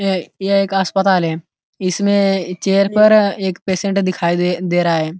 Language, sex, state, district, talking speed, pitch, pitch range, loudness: Hindi, male, Uttar Pradesh, Ghazipur, 175 wpm, 190 Hz, 180-195 Hz, -16 LUFS